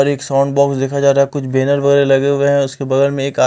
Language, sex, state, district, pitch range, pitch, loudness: Hindi, male, Punjab, Fazilka, 135-140 Hz, 140 Hz, -14 LUFS